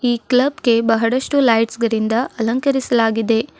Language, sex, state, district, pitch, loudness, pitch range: Kannada, female, Karnataka, Bidar, 235 Hz, -17 LUFS, 225-255 Hz